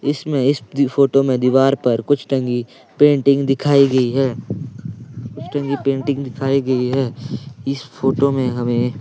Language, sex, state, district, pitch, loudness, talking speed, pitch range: Hindi, male, Himachal Pradesh, Shimla, 135 Hz, -18 LUFS, 155 wpm, 130-140 Hz